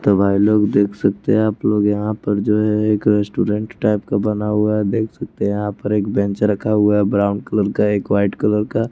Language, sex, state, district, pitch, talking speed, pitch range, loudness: Hindi, male, Chandigarh, Chandigarh, 105 Hz, 240 wpm, 100-105 Hz, -18 LUFS